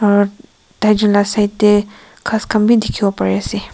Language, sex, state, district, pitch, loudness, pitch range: Nagamese, female, Nagaland, Kohima, 210 Hz, -15 LUFS, 205-215 Hz